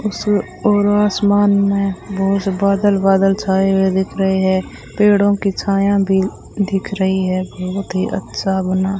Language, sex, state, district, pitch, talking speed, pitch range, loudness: Hindi, female, Rajasthan, Bikaner, 195 Hz, 160 wpm, 190-200 Hz, -16 LUFS